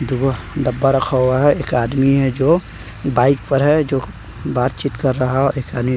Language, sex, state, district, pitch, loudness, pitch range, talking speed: Hindi, male, Bihar, West Champaran, 135 Hz, -17 LUFS, 125-140 Hz, 180 wpm